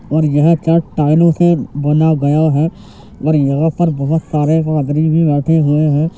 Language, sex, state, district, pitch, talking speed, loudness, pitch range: Hindi, male, Uttar Pradesh, Jyotiba Phule Nagar, 155 Hz, 145 wpm, -13 LUFS, 150-160 Hz